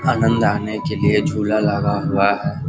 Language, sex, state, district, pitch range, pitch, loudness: Hindi, male, Bihar, Sitamarhi, 100-145 Hz, 110 Hz, -18 LUFS